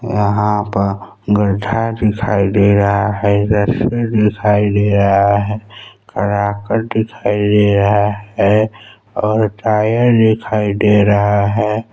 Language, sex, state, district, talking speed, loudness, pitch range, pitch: Hindi, male, Chhattisgarh, Balrampur, 115 wpm, -14 LUFS, 100-110 Hz, 105 Hz